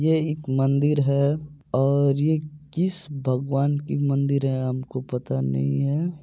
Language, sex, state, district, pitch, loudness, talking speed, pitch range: Hindi, male, Bihar, Supaul, 140 Hz, -24 LUFS, 145 wpm, 130-150 Hz